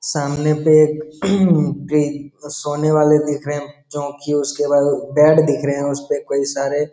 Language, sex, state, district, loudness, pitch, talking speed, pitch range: Hindi, male, Bihar, Jamui, -17 LUFS, 145 Hz, 155 wpm, 145-150 Hz